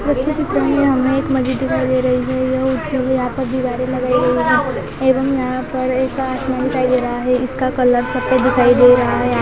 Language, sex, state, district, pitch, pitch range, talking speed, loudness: Hindi, female, Uttar Pradesh, Budaun, 255 Hz, 250-265 Hz, 205 wpm, -16 LUFS